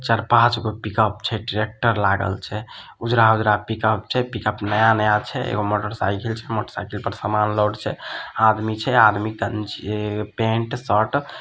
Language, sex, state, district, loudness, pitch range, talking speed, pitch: Maithili, male, Bihar, Samastipur, -21 LUFS, 105-115 Hz, 145 wpm, 110 Hz